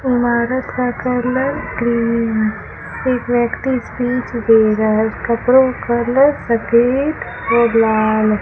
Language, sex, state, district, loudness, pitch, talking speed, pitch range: Hindi, female, Rajasthan, Bikaner, -16 LUFS, 235 Hz, 120 wpm, 225-255 Hz